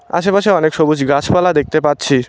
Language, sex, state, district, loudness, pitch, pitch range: Bengali, male, West Bengal, Cooch Behar, -14 LUFS, 155 Hz, 140-180 Hz